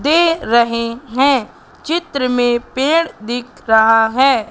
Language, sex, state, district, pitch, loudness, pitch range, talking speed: Hindi, female, Madhya Pradesh, Katni, 245 Hz, -15 LUFS, 230-280 Hz, 120 wpm